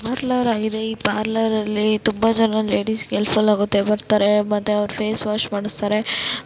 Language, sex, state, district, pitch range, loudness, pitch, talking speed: Kannada, female, Karnataka, Raichur, 210-220 Hz, -19 LUFS, 215 Hz, 130 wpm